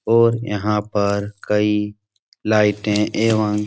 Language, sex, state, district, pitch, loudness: Hindi, male, Bihar, Supaul, 105 Hz, -19 LUFS